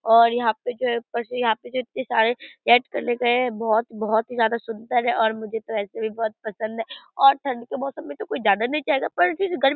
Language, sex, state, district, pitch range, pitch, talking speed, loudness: Hindi, female, Bihar, Purnia, 225-250 Hz, 235 Hz, 245 wpm, -23 LUFS